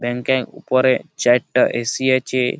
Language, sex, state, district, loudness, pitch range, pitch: Bengali, male, West Bengal, Malda, -18 LUFS, 120-130 Hz, 125 Hz